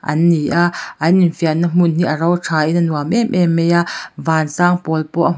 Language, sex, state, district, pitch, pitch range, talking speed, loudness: Mizo, female, Mizoram, Aizawl, 170 Hz, 160-175 Hz, 245 wpm, -16 LUFS